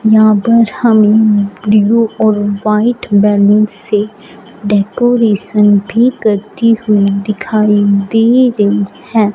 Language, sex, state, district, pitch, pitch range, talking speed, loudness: Hindi, female, Punjab, Fazilka, 210 Hz, 205-225 Hz, 105 wpm, -11 LUFS